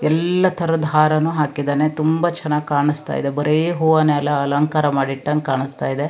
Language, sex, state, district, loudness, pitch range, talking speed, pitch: Kannada, female, Karnataka, Shimoga, -18 LUFS, 145-160 Hz, 155 wpm, 150 Hz